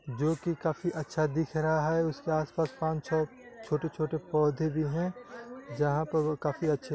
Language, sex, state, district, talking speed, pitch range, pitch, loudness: Hindi, male, Bihar, East Champaran, 175 wpm, 155-165 Hz, 155 Hz, -31 LUFS